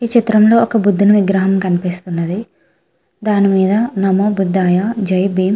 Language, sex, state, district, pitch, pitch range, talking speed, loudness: Telugu, female, Andhra Pradesh, Srikakulam, 195 Hz, 190-215 Hz, 140 wpm, -14 LUFS